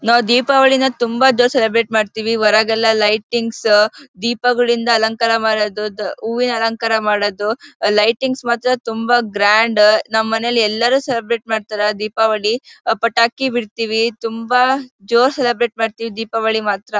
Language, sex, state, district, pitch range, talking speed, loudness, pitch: Kannada, female, Karnataka, Bellary, 220-240 Hz, 110 wpm, -16 LUFS, 225 Hz